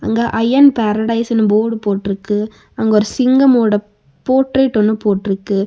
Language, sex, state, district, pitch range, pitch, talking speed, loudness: Tamil, female, Tamil Nadu, Nilgiris, 205-235 Hz, 220 Hz, 115 wpm, -14 LUFS